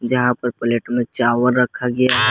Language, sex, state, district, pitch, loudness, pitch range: Hindi, male, Jharkhand, Garhwa, 125 Hz, -18 LUFS, 120-125 Hz